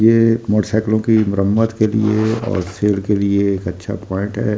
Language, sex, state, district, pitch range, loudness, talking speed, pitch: Hindi, male, Delhi, New Delhi, 100-110 Hz, -17 LUFS, 210 wpm, 105 Hz